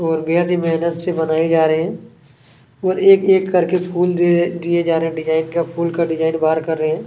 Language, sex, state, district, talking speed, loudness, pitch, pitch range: Hindi, male, Chhattisgarh, Kabirdham, 230 wpm, -17 LUFS, 165 Hz, 160-175 Hz